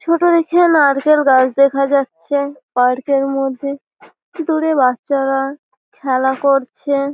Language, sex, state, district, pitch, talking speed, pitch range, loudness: Bengali, female, West Bengal, Malda, 275 Hz, 110 wpm, 270-290 Hz, -15 LUFS